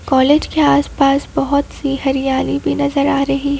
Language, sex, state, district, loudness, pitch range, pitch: Hindi, female, Madhya Pradesh, Bhopal, -15 LUFS, 275-285 Hz, 280 Hz